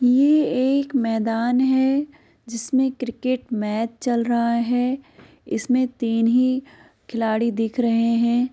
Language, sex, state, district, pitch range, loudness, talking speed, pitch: Hindi, female, Uttar Pradesh, Muzaffarnagar, 230-260 Hz, -21 LUFS, 120 wpm, 245 Hz